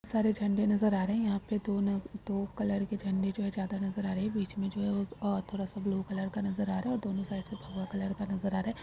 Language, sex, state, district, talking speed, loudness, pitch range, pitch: Hindi, female, Bihar, Madhepura, 320 wpm, -33 LUFS, 195-205 Hz, 200 Hz